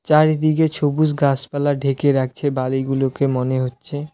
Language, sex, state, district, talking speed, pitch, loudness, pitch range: Bengali, male, West Bengal, Alipurduar, 115 wpm, 140 Hz, -19 LUFS, 135-150 Hz